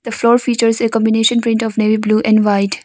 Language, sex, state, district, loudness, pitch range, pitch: English, female, Arunachal Pradesh, Longding, -14 LUFS, 215-235 Hz, 225 Hz